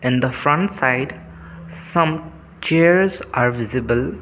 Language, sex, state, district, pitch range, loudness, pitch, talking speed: English, male, Assam, Kamrup Metropolitan, 120-165 Hz, -18 LUFS, 130 Hz, 115 wpm